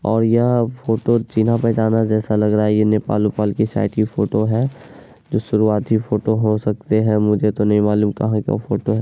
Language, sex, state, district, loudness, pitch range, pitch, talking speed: Hindi, male, Bihar, Araria, -18 LUFS, 105-110 Hz, 110 Hz, 220 wpm